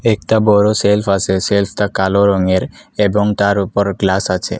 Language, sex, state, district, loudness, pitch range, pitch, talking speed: Bengali, male, Assam, Kamrup Metropolitan, -14 LUFS, 95-105 Hz, 100 Hz, 185 wpm